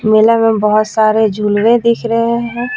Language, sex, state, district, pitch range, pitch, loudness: Hindi, female, Jharkhand, Ranchi, 215-235 Hz, 225 Hz, -12 LUFS